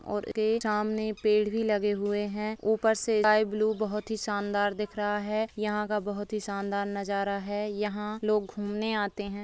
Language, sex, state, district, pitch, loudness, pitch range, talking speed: Hindi, female, Bihar, Begusarai, 210 Hz, -29 LUFS, 205-215 Hz, 190 wpm